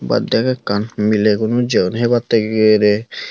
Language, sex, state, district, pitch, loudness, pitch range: Chakma, male, Tripura, Unakoti, 110 Hz, -16 LUFS, 105-120 Hz